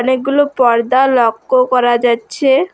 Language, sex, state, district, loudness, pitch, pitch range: Bengali, female, West Bengal, Alipurduar, -13 LUFS, 255 Hz, 240-265 Hz